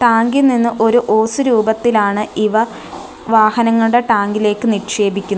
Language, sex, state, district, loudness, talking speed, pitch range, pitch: Malayalam, female, Kerala, Kollam, -14 LUFS, 120 wpm, 215-235 Hz, 225 Hz